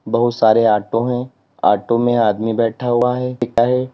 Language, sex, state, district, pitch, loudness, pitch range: Hindi, male, Uttar Pradesh, Lalitpur, 120 Hz, -17 LUFS, 115-125 Hz